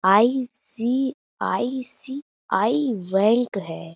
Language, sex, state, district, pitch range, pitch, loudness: Hindi, female, Uttar Pradesh, Budaun, 195-265 Hz, 240 Hz, -23 LUFS